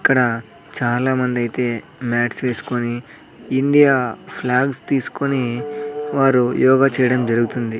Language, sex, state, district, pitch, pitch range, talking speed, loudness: Telugu, male, Andhra Pradesh, Sri Satya Sai, 125 Hz, 120-135 Hz, 100 wpm, -19 LUFS